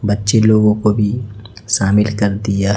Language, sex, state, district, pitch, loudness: Hindi, male, Chhattisgarh, Raipur, 105 Hz, -15 LUFS